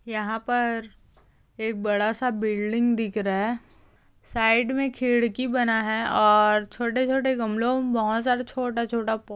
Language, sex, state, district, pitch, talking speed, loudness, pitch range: Hindi, female, Andhra Pradesh, Chittoor, 230 Hz, 140 wpm, -24 LUFS, 215-245 Hz